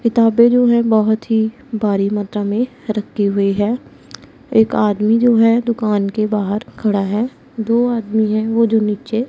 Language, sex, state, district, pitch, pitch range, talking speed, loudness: Hindi, female, Punjab, Pathankot, 220 Hz, 210-230 Hz, 170 wpm, -16 LUFS